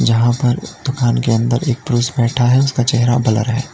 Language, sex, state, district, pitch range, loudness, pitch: Hindi, male, Uttar Pradesh, Lalitpur, 120-130 Hz, -16 LUFS, 120 Hz